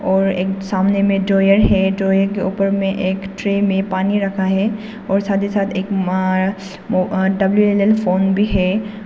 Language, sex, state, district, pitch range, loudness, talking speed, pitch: Hindi, female, Arunachal Pradesh, Papum Pare, 190-200 Hz, -17 LUFS, 165 wpm, 195 Hz